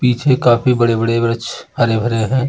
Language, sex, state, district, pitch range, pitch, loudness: Hindi, male, Bihar, Darbhanga, 115-125 Hz, 120 Hz, -15 LUFS